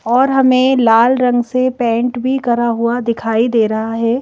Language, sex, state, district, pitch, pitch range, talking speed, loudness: Hindi, female, Madhya Pradesh, Bhopal, 240 Hz, 230-255 Hz, 185 wpm, -14 LUFS